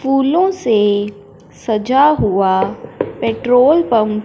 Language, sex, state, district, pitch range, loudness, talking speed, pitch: Hindi, female, Punjab, Fazilka, 210-270 Hz, -14 LUFS, 100 wpm, 230 Hz